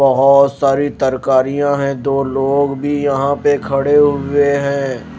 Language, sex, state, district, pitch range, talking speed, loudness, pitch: Hindi, male, Himachal Pradesh, Shimla, 135-145 Hz, 140 wpm, -14 LUFS, 140 Hz